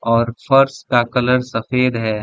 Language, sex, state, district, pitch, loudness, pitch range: Hindi, male, Bihar, Gaya, 125 Hz, -17 LUFS, 115-125 Hz